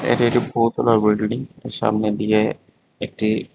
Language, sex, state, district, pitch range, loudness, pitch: Bengali, male, Tripura, West Tripura, 105-120 Hz, -20 LUFS, 110 Hz